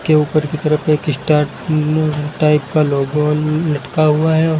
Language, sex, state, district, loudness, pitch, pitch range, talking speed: Hindi, male, Uttar Pradesh, Lucknow, -16 LUFS, 150 Hz, 150-155 Hz, 195 wpm